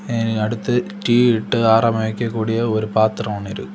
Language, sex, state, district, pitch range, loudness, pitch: Tamil, male, Tamil Nadu, Kanyakumari, 110-115 Hz, -18 LUFS, 115 Hz